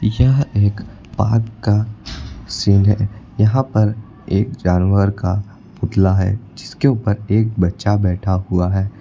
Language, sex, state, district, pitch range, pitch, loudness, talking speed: Hindi, male, Uttar Pradesh, Lucknow, 95-110 Hz, 105 Hz, -17 LUFS, 135 wpm